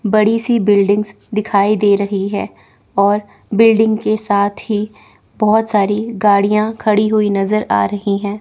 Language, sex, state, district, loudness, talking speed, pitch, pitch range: Hindi, female, Chandigarh, Chandigarh, -15 LUFS, 150 wpm, 210 Hz, 200-215 Hz